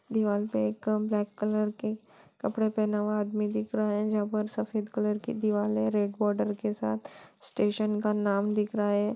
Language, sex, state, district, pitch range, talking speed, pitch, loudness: Hindi, female, Bihar, Saran, 205-215 Hz, 195 wpm, 210 Hz, -29 LUFS